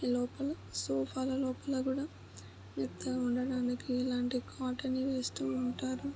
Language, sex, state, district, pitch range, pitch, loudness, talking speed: Telugu, male, Andhra Pradesh, Guntur, 245-260 Hz, 250 Hz, -36 LUFS, 115 wpm